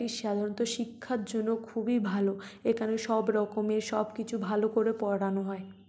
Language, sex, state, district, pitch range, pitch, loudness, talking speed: Bengali, female, West Bengal, North 24 Parganas, 205-225 Hz, 220 Hz, -31 LUFS, 140 wpm